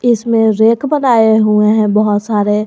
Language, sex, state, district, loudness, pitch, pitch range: Hindi, female, Jharkhand, Garhwa, -11 LUFS, 220 Hz, 210-230 Hz